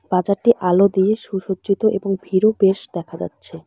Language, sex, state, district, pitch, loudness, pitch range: Bengali, female, West Bengal, Alipurduar, 195 Hz, -18 LUFS, 185-205 Hz